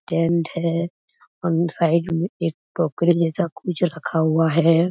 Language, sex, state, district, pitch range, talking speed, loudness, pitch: Hindi, male, Chhattisgarh, Raigarh, 165-170 Hz, 145 wpm, -21 LUFS, 170 Hz